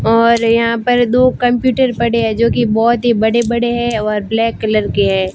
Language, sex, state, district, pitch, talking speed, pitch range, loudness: Hindi, female, Rajasthan, Barmer, 235 Hz, 200 wpm, 220-240 Hz, -14 LUFS